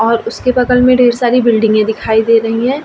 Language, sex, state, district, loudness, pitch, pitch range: Hindi, female, Bihar, Vaishali, -11 LUFS, 235 Hz, 225-250 Hz